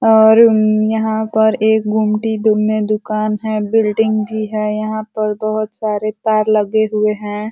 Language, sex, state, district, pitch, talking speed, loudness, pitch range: Hindi, female, Uttar Pradesh, Ghazipur, 215 Hz, 150 wpm, -15 LUFS, 215-220 Hz